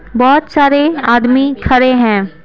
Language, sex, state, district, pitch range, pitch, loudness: Hindi, female, Bihar, Patna, 235-280 Hz, 255 Hz, -11 LUFS